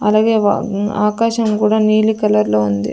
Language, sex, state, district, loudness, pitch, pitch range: Telugu, female, Andhra Pradesh, Sri Satya Sai, -15 LUFS, 210 Hz, 200-220 Hz